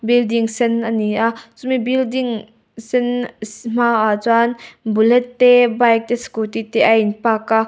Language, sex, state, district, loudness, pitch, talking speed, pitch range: Mizo, female, Mizoram, Aizawl, -16 LUFS, 230 Hz, 150 wpm, 225-245 Hz